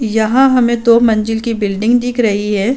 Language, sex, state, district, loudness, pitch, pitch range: Hindi, female, Uttar Pradesh, Budaun, -13 LUFS, 230 Hz, 220-240 Hz